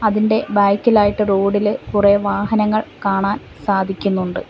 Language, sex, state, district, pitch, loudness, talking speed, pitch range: Malayalam, female, Kerala, Kollam, 205 Hz, -17 LUFS, 95 wpm, 200-210 Hz